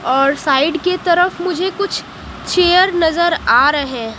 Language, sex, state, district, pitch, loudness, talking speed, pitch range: Hindi, female, Haryana, Jhajjar, 340 Hz, -15 LUFS, 155 wpm, 285-360 Hz